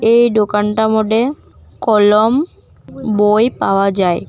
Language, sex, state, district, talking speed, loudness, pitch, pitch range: Bengali, female, Assam, Kamrup Metropolitan, 100 wpm, -14 LUFS, 220 Hz, 210-230 Hz